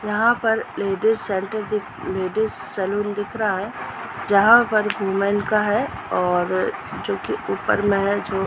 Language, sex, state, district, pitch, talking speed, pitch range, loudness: Hindi, female, Bihar, Purnia, 205 Hz, 165 wpm, 195-215 Hz, -21 LUFS